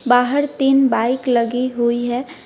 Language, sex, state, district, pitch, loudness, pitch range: Hindi, female, West Bengal, Alipurduar, 250 Hz, -17 LUFS, 240-270 Hz